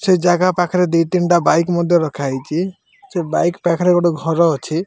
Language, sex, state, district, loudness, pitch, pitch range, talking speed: Odia, male, Odisha, Malkangiri, -16 LUFS, 175 Hz, 165-180 Hz, 185 wpm